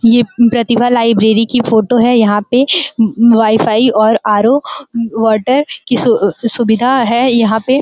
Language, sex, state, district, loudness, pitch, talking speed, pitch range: Hindi, female, Uttar Pradesh, Gorakhpur, -11 LUFS, 235 Hz, 130 wpm, 220-245 Hz